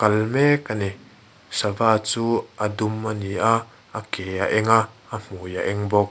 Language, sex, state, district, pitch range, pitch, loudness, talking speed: Mizo, male, Mizoram, Aizawl, 100-115 Hz, 110 Hz, -22 LUFS, 195 wpm